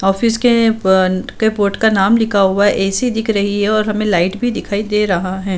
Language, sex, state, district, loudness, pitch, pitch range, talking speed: Hindi, female, Uttar Pradesh, Budaun, -15 LUFS, 205 Hz, 195-220 Hz, 225 wpm